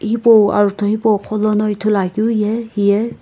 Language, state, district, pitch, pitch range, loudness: Sumi, Nagaland, Kohima, 215 Hz, 205-220 Hz, -15 LUFS